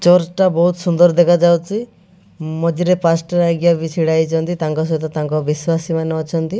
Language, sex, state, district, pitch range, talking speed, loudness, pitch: Odia, male, Odisha, Malkangiri, 160-175 Hz, 125 wpm, -16 LUFS, 170 Hz